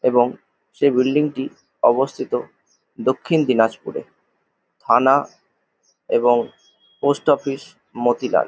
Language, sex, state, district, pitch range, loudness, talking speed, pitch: Bengali, male, West Bengal, Jalpaiguri, 120-140 Hz, -19 LUFS, 90 wpm, 130 Hz